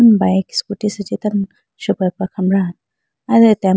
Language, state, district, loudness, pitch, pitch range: Idu Mishmi, Arunachal Pradesh, Lower Dibang Valley, -17 LUFS, 200 Hz, 190-210 Hz